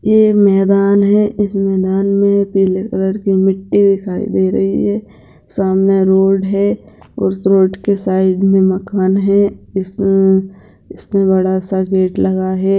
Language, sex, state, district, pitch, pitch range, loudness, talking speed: Hindi, female, Bihar, Jamui, 195 Hz, 190-200 Hz, -14 LUFS, 145 wpm